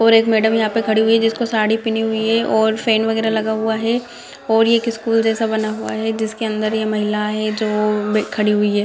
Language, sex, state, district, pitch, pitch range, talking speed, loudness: Hindi, female, Bihar, Madhepura, 220 Hz, 215-225 Hz, 250 wpm, -17 LUFS